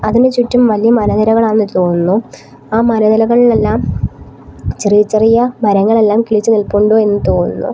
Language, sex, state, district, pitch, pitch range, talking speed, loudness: Malayalam, female, Kerala, Kollam, 220 Hz, 210-230 Hz, 115 wpm, -11 LUFS